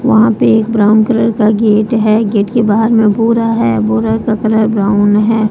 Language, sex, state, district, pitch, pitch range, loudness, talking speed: Hindi, female, Jharkhand, Deoghar, 220 Hz, 210-225 Hz, -11 LUFS, 205 wpm